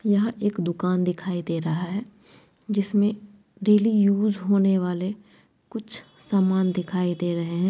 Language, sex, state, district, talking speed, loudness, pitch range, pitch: Angika, female, Bihar, Madhepura, 140 wpm, -24 LUFS, 180-210 Hz, 195 Hz